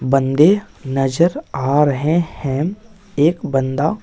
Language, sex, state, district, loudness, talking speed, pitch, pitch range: Hindi, male, Bihar, West Champaran, -17 LUFS, 105 wpm, 150 Hz, 135-175 Hz